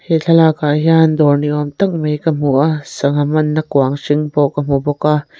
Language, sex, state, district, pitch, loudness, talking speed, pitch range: Mizo, female, Mizoram, Aizawl, 150 Hz, -14 LUFS, 220 wpm, 145-160 Hz